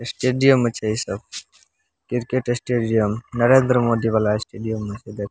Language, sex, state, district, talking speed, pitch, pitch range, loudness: Maithili, male, Bihar, Samastipur, 145 wpm, 115 Hz, 110-125 Hz, -21 LUFS